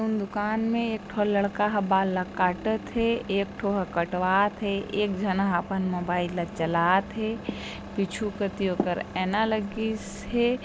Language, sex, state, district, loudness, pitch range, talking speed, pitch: Chhattisgarhi, female, Chhattisgarh, Sarguja, -27 LUFS, 185-220 Hz, 150 wpm, 200 Hz